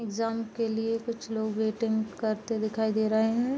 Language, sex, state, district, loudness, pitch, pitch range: Hindi, female, Bihar, Supaul, -29 LUFS, 220 Hz, 220-225 Hz